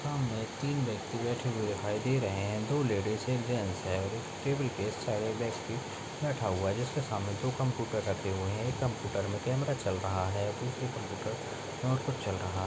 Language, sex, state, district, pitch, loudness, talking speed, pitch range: Hindi, male, Goa, North and South Goa, 115 Hz, -34 LUFS, 185 wpm, 100-130 Hz